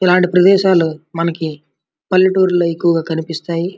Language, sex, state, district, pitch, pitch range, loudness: Telugu, male, Andhra Pradesh, Srikakulam, 170 Hz, 165-185 Hz, -15 LUFS